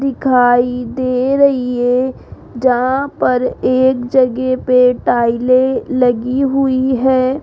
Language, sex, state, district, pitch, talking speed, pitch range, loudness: Hindi, female, Rajasthan, Jaipur, 255 Hz, 105 wpm, 250-260 Hz, -14 LUFS